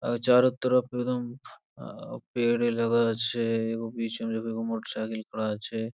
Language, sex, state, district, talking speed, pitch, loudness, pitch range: Bengali, male, West Bengal, Purulia, 140 wpm, 115 Hz, -28 LUFS, 115-120 Hz